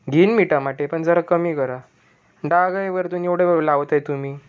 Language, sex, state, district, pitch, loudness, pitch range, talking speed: Marathi, male, Maharashtra, Pune, 165 Hz, -19 LUFS, 145-175 Hz, 185 wpm